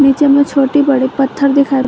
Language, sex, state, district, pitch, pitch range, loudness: Hindi, female, Jharkhand, Garhwa, 275 Hz, 270-280 Hz, -12 LUFS